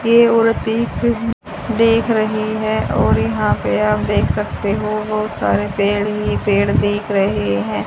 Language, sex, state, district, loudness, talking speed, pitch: Hindi, female, Haryana, Rohtak, -17 LUFS, 155 wpm, 210 Hz